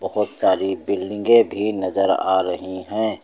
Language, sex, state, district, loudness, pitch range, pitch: Hindi, male, Uttar Pradesh, Lucknow, -20 LUFS, 95-105 Hz, 95 Hz